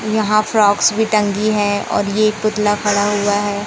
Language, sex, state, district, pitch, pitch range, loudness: Hindi, male, Madhya Pradesh, Katni, 210 Hz, 205-215 Hz, -16 LUFS